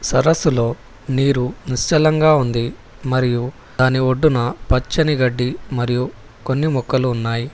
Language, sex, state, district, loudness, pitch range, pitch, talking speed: Telugu, male, Telangana, Hyderabad, -18 LUFS, 120-140 Hz, 130 Hz, 105 wpm